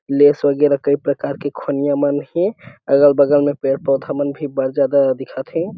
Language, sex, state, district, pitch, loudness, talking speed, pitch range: Chhattisgarhi, male, Chhattisgarh, Sarguja, 140 Hz, -17 LUFS, 195 wpm, 140-145 Hz